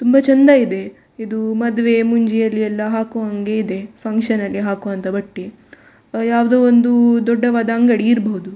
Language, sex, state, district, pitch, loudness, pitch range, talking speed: Kannada, female, Karnataka, Dakshina Kannada, 225 Hz, -16 LUFS, 210-235 Hz, 125 wpm